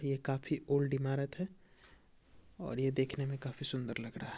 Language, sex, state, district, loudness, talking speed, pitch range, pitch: Hindi, male, Uttar Pradesh, Varanasi, -37 LUFS, 190 wpm, 130-140 Hz, 135 Hz